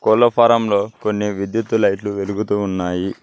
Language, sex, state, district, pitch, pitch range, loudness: Telugu, male, Telangana, Mahabubabad, 105 Hz, 100-110 Hz, -18 LUFS